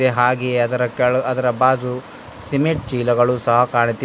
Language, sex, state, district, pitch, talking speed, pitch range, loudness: Kannada, male, Karnataka, Bidar, 125 Hz, 120 wpm, 120-130 Hz, -18 LUFS